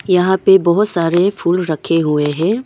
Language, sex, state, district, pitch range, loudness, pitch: Hindi, female, Arunachal Pradesh, Longding, 165-190 Hz, -14 LUFS, 175 Hz